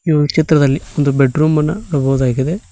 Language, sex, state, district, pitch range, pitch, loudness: Kannada, male, Karnataka, Koppal, 135-160 Hz, 150 Hz, -15 LUFS